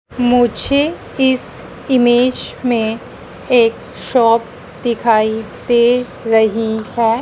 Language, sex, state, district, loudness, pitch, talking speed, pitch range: Hindi, female, Madhya Pradesh, Dhar, -15 LUFS, 240 Hz, 85 wpm, 225-250 Hz